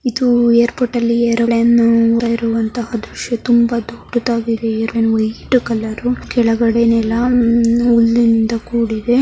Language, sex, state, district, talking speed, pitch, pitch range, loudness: Kannada, male, Karnataka, Mysore, 90 wpm, 235 Hz, 230-235 Hz, -15 LUFS